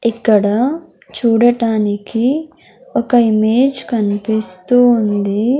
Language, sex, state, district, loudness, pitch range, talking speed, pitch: Telugu, female, Andhra Pradesh, Sri Satya Sai, -14 LUFS, 215-245 Hz, 65 wpm, 230 Hz